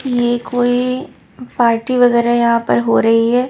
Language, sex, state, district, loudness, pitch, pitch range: Hindi, female, Punjab, Pathankot, -14 LUFS, 240 Hz, 235-250 Hz